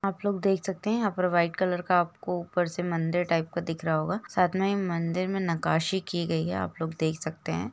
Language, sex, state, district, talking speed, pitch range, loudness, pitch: Hindi, female, Jharkhand, Jamtara, 250 wpm, 165-190 Hz, -28 LUFS, 175 Hz